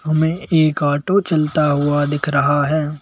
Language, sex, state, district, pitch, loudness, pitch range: Hindi, male, Madhya Pradesh, Bhopal, 150 Hz, -17 LUFS, 145-155 Hz